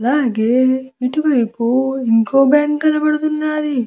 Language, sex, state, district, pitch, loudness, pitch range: Telugu, female, Andhra Pradesh, Visakhapatnam, 265 Hz, -16 LUFS, 245-300 Hz